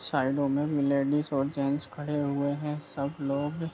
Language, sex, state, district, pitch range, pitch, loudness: Hindi, male, Jharkhand, Jamtara, 140-150 Hz, 140 Hz, -29 LUFS